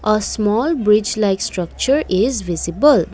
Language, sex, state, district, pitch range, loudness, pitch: English, female, Assam, Kamrup Metropolitan, 190-245 Hz, -17 LUFS, 210 Hz